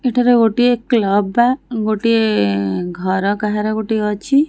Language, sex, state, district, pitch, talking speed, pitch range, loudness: Odia, female, Odisha, Khordha, 220 Hz, 120 wpm, 200-240 Hz, -16 LUFS